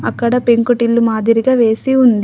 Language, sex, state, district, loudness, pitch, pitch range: Telugu, female, Telangana, Adilabad, -13 LUFS, 235 Hz, 230-245 Hz